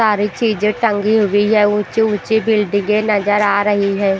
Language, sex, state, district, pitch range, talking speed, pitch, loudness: Hindi, female, Bihar, Patna, 205-215 Hz, 155 wpm, 210 Hz, -15 LUFS